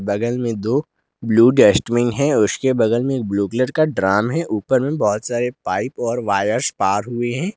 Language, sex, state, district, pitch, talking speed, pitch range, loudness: Hindi, male, Jharkhand, Garhwa, 120 Hz, 190 wpm, 110-130 Hz, -18 LUFS